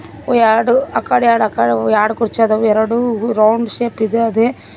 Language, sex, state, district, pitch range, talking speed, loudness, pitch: Kannada, female, Karnataka, Koppal, 220-235 Hz, 190 wpm, -14 LUFS, 225 Hz